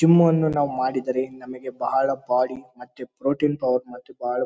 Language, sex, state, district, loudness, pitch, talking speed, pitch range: Kannada, male, Karnataka, Bellary, -23 LUFS, 130 Hz, 160 wpm, 125-140 Hz